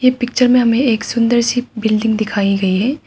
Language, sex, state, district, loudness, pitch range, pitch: Hindi, female, Arunachal Pradesh, Papum Pare, -15 LUFS, 215-250 Hz, 235 Hz